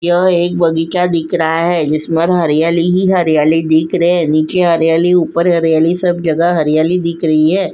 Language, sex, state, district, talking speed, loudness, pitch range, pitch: Hindi, female, Uttar Pradesh, Jyotiba Phule Nagar, 180 wpm, -12 LUFS, 160-175 Hz, 170 Hz